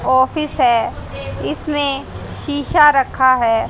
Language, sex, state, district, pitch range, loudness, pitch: Hindi, female, Haryana, Rohtak, 260-295 Hz, -16 LUFS, 270 Hz